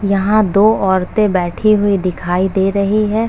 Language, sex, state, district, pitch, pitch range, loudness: Hindi, female, Uttar Pradesh, Etah, 200 Hz, 190-215 Hz, -14 LUFS